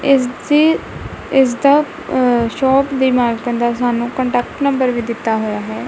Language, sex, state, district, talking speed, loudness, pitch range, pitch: Punjabi, female, Punjab, Kapurthala, 135 wpm, -16 LUFS, 235-275 Hz, 250 Hz